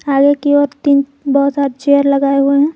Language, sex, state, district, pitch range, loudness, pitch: Hindi, female, Jharkhand, Garhwa, 280-285 Hz, -13 LUFS, 280 Hz